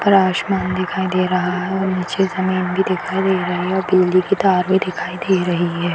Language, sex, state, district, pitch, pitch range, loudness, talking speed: Hindi, female, Bihar, Darbhanga, 185 Hz, 180-190 Hz, -18 LUFS, 230 wpm